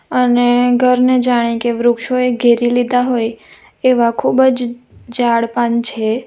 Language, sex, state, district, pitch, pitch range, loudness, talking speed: Gujarati, female, Gujarat, Valsad, 245 Hz, 235-250 Hz, -14 LUFS, 135 wpm